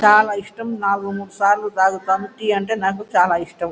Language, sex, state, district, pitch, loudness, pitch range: Telugu, female, Andhra Pradesh, Guntur, 200 Hz, -19 LUFS, 190-210 Hz